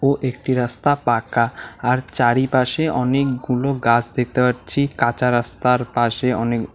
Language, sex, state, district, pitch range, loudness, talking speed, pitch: Bengali, male, West Bengal, Alipurduar, 120-130 Hz, -19 LUFS, 125 wpm, 125 Hz